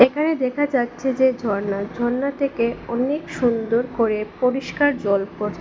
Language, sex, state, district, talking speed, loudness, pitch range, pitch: Bengali, female, Assam, Hailakandi, 150 wpm, -21 LUFS, 225-270 Hz, 245 Hz